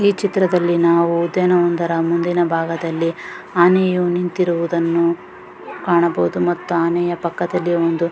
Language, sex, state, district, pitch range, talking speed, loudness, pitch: Kannada, female, Karnataka, Gulbarga, 170-175 Hz, 110 wpm, -17 LUFS, 170 Hz